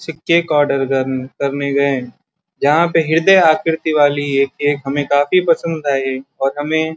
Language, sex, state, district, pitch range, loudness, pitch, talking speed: Hindi, male, Uttar Pradesh, Gorakhpur, 140-160 Hz, -16 LUFS, 145 Hz, 165 wpm